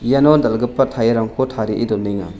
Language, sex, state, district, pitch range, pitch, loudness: Garo, male, Meghalaya, West Garo Hills, 110-135 Hz, 115 Hz, -17 LUFS